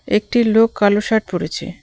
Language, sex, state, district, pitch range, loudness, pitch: Bengali, female, West Bengal, Cooch Behar, 195-225 Hz, -17 LUFS, 210 Hz